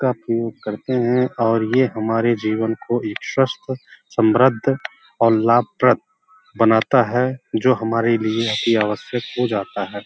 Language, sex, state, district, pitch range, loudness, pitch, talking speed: Hindi, male, Uttar Pradesh, Hamirpur, 110-130 Hz, -19 LUFS, 115 Hz, 145 wpm